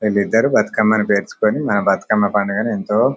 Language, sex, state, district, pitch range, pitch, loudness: Telugu, male, Telangana, Karimnagar, 100-110 Hz, 105 Hz, -17 LUFS